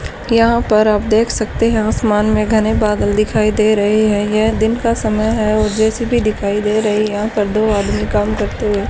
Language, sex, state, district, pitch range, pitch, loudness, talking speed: Hindi, female, Haryana, Charkhi Dadri, 210-220 Hz, 215 Hz, -15 LUFS, 230 wpm